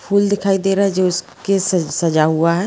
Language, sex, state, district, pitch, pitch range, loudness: Magahi, female, Bihar, Gaya, 190 Hz, 170-200 Hz, -17 LUFS